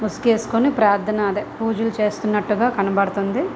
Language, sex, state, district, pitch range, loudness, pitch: Telugu, female, Andhra Pradesh, Visakhapatnam, 205-225 Hz, -20 LUFS, 215 Hz